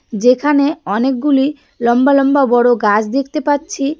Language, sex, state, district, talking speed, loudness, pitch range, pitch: Bengali, female, West Bengal, Darjeeling, 120 wpm, -14 LUFS, 245-290 Hz, 275 Hz